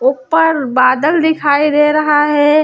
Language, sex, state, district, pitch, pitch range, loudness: Hindi, female, Chhattisgarh, Raipur, 295 Hz, 280-305 Hz, -12 LUFS